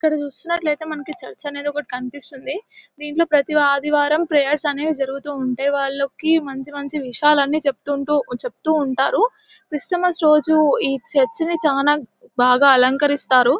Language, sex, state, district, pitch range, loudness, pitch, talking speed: Telugu, female, Telangana, Nalgonda, 275-305 Hz, -18 LUFS, 290 Hz, 130 wpm